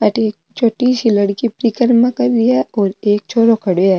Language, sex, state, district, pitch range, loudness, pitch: Marwari, female, Rajasthan, Nagaur, 205-240 Hz, -14 LUFS, 225 Hz